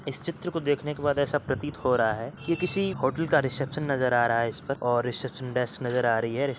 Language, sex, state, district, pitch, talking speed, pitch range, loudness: Hindi, male, Uttar Pradesh, Varanasi, 135 Hz, 245 wpm, 120-145 Hz, -27 LUFS